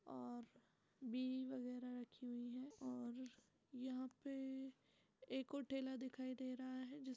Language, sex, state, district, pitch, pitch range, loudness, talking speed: Hindi, female, Uttar Pradesh, Etah, 255 Hz, 250-265 Hz, -50 LUFS, 160 wpm